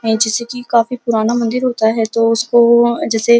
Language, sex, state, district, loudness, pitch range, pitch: Hindi, female, Uttar Pradesh, Muzaffarnagar, -14 LUFS, 225-240 Hz, 235 Hz